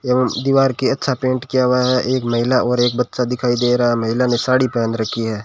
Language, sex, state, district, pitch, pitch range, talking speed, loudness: Hindi, male, Rajasthan, Bikaner, 125 Hz, 120-130 Hz, 255 wpm, -17 LUFS